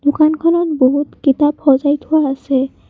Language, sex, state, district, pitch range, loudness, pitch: Assamese, female, Assam, Kamrup Metropolitan, 275-310 Hz, -15 LUFS, 290 Hz